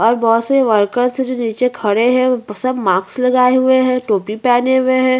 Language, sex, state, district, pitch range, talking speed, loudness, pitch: Hindi, female, Chhattisgarh, Bastar, 225-255 Hz, 210 wpm, -14 LUFS, 250 Hz